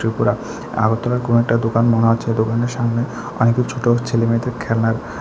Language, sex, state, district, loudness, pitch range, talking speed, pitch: Bengali, male, Tripura, West Tripura, -18 LUFS, 115-120 Hz, 160 wpm, 115 Hz